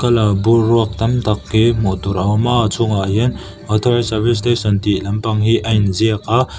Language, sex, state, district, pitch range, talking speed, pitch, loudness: Mizo, male, Mizoram, Aizawl, 105-115 Hz, 210 wpm, 110 Hz, -16 LUFS